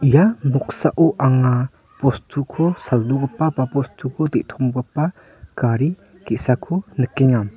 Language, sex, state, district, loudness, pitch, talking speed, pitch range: Garo, male, Meghalaya, North Garo Hills, -20 LUFS, 135 Hz, 85 wpm, 125-155 Hz